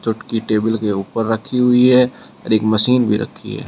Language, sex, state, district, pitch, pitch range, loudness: Hindi, male, Uttar Pradesh, Shamli, 110 Hz, 110-125 Hz, -16 LUFS